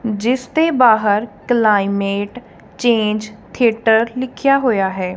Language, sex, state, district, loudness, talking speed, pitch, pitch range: Punjabi, female, Punjab, Kapurthala, -16 LUFS, 105 wpm, 225 Hz, 205-245 Hz